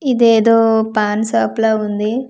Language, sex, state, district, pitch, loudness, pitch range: Telugu, female, Andhra Pradesh, Manyam, 225 Hz, -14 LUFS, 215-230 Hz